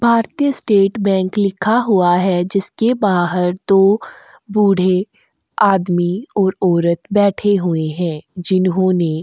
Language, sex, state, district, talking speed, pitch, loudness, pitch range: Hindi, female, Goa, North and South Goa, 115 wpm, 190 Hz, -16 LUFS, 180-205 Hz